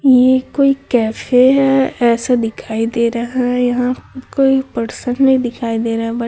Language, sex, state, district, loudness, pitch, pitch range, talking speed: Hindi, female, Chhattisgarh, Raipur, -15 LUFS, 250 Hz, 235-265 Hz, 180 wpm